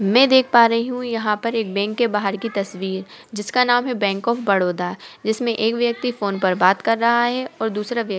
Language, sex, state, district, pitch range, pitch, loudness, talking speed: Hindi, female, Uttar Pradesh, Budaun, 200-240 Hz, 225 Hz, -19 LUFS, 235 wpm